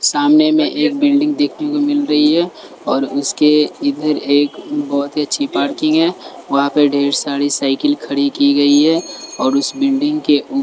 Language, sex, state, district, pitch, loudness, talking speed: Hindi, male, Delhi, New Delhi, 155 Hz, -15 LUFS, 175 wpm